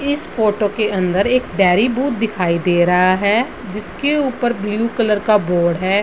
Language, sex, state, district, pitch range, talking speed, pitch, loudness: Hindi, female, Bihar, Madhepura, 185-240 Hz, 180 wpm, 210 Hz, -16 LUFS